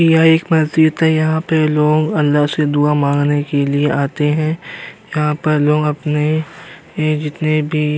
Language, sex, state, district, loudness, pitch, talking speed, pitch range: Hindi, male, Uttar Pradesh, Jyotiba Phule Nagar, -15 LUFS, 150 Hz, 175 wpm, 150-160 Hz